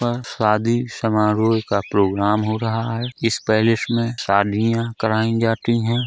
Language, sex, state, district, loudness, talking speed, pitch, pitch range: Hindi, male, Uttar Pradesh, Jalaun, -20 LUFS, 150 wpm, 115 Hz, 105-115 Hz